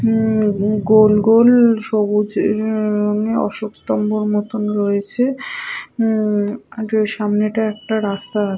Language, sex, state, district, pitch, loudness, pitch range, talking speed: Bengali, female, West Bengal, Purulia, 215 Hz, -17 LUFS, 210-220 Hz, 105 wpm